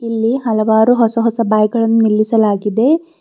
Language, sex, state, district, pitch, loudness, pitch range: Kannada, female, Karnataka, Bidar, 225 Hz, -14 LUFS, 215-230 Hz